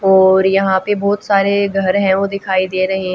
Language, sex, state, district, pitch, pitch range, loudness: Hindi, female, Haryana, Jhajjar, 195 Hz, 190-200 Hz, -14 LUFS